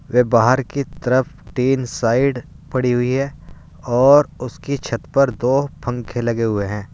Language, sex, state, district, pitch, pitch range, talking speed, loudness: Hindi, male, Uttar Pradesh, Saharanpur, 125 Hz, 115-135 Hz, 155 wpm, -18 LUFS